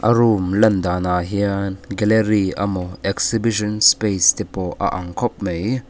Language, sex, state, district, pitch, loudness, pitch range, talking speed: Mizo, male, Mizoram, Aizawl, 100 Hz, -19 LUFS, 95-110 Hz, 160 wpm